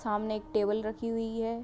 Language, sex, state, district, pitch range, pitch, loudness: Hindi, female, Uttar Pradesh, Hamirpur, 215-230 Hz, 220 Hz, -32 LUFS